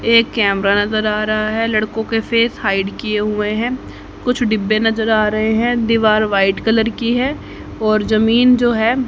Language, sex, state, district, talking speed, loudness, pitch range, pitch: Hindi, female, Haryana, Jhajjar, 185 wpm, -16 LUFS, 215-230 Hz, 220 Hz